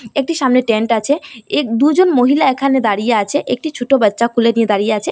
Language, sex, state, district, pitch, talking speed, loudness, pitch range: Bengali, female, Assam, Hailakandi, 250 Hz, 200 wpm, -14 LUFS, 225-280 Hz